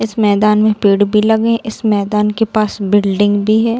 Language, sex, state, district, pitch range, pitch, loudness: Hindi, female, Bihar, Darbhanga, 205-220 Hz, 210 Hz, -13 LUFS